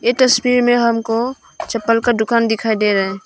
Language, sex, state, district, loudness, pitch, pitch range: Hindi, female, Arunachal Pradesh, Longding, -16 LUFS, 230 Hz, 225-245 Hz